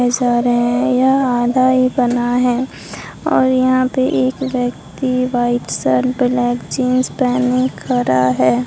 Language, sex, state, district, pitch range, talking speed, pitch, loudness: Hindi, female, Bihar, Katihar, 245-255 Hz, 140 wpm, 250 Hz, -16 LUFS